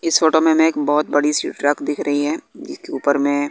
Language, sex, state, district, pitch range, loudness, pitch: Hindi, male, Bihar, West Champaran, 145-165 Hz, -18 LUFS, 150 Hz